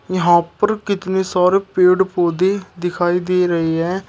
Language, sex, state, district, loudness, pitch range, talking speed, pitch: Hindi, male, Uttar Pradesh, Shamli, -17 LUFS, 175-190 Hz, 145 wpm, 180 Hz